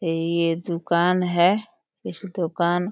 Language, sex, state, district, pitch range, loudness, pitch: Hindi, female, Uttar Pradesh, Deoria, 170-180 Hz, -22 LUFS, 175 Hz